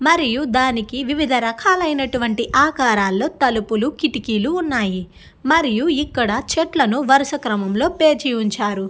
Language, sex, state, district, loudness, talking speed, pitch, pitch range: Telugu, female, Andhra Pradesh, Guntur, -18 LUFS, 110 wpm, 260 Hz, 225-300 Hz